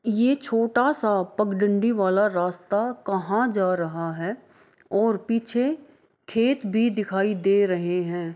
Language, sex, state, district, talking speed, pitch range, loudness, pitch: Maithili, female, Bihar, Araria, 130 wpm, 190-230 Hz, -24 LUFS, 205 Hz